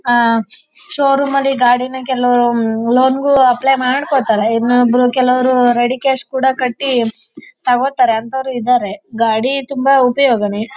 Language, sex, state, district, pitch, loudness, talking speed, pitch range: Kannada, female, Karnataka, Chamarajanagar, 255 Hz, -14 LUFS, 110 wpm, 240-270 Hz